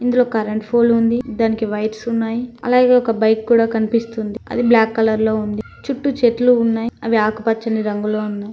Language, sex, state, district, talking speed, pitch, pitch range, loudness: Telugu, female, Telangana, Mahabubabad, 170 wpm, 225 Hz, 220-235 Hz, -17 LUFS